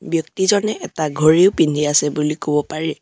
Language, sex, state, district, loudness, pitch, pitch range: Assamese, male, Assam, Sonitpur, -17 LUFS, 155 Hz, 150-170 Hz